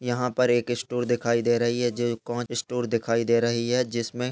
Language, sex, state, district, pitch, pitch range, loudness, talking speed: Hindi, male, Uttar Pradesh, Gorakhpur, 120 Hz, 115-120 Hz, -25 LUFS, 220 wpm